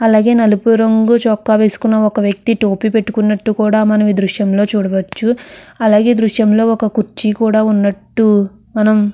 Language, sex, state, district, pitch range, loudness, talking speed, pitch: Telugu, female, Andhra Pradesh, Krishna, 210-225 Hz, -13 LUFS, 160 wpm, 215 Hz